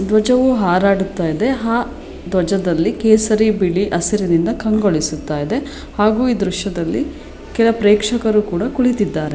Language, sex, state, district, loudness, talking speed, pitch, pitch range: Kannada, female, Karnataka, Shimoga, -16 LUFS, 105 wpm, 210 Hz, 185-230 Hz